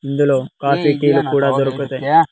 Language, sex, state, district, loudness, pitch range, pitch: Telugu, male, Andhra Pradesh, Sri Satya Sai, -16 LUFS, 135-145 Hz, 140 Hz